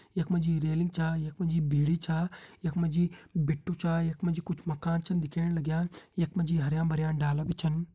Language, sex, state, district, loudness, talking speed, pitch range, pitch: Hindi, male, Uttarakhand, Uttarkashi, -30 LUFS, 235 wpm, 160-170 Hz, 165 Hz